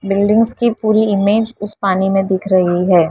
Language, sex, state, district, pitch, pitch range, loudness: Hindi, female, Maharashtra, Mumbai Suburban, 200 Hz, 190-215 Hz, -14 LUFS